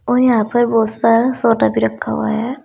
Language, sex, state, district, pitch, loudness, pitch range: Hindi, female, Uttar Pradesh, Saharanpur, 230 Hz, -15 LUFS, 220-240 Hz